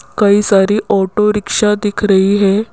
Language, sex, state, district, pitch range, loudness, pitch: Hindi, female, Rajasthan, Jaipur, 200-210 Hz, -13 LUFS, 205 Hz